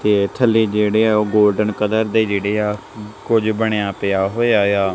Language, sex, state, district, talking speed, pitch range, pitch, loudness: Punjabi, male, Punjab, Kapurthala, 180 wpm, 100-110 Hz, 105 Hz, -17 LUFS